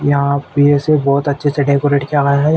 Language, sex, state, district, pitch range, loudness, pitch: Hindi, male, Uttar Pradesh, Ghazipur, 140-145 Hz, -14 LUFS, 145 Hz